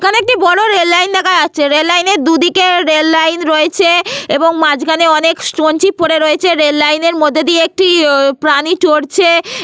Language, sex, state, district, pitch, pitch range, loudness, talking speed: Bengali, female, Jharkhand, Sahebganj, 330 Hz, 310-360 Hz, -10 LUFS, 180 wpm